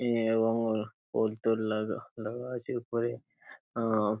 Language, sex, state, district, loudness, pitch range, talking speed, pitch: Bengali, male, West Bengal, Paschim Medinipur, -32 LUFS, 110-115 Hz, 140 wpm, 115 Hz